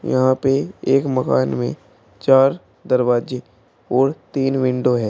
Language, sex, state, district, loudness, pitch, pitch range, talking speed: Hindi, male, Uttar Pradesh, Shamli, -18 LUFS, 130 Hz, 125-135 Hz, 130 wpm